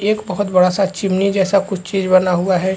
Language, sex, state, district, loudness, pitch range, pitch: Hindi, male, Chhattisgarh, Bastar, -16 LUFS, 185-200 Hz, 190 Hz